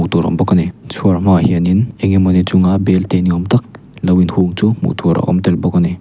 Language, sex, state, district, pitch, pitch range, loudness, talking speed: Mizo, male, Mizoram, Aizawl, 90 Hz, 90-95 Hz, -14 LUFS, 250 wpm